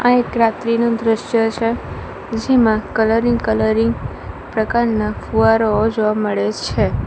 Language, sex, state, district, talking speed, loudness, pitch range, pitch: Gujarati, female, Gujarat, Valsad, 110 wpm, -17 LUFS, 210-230 Hz, 225 Hz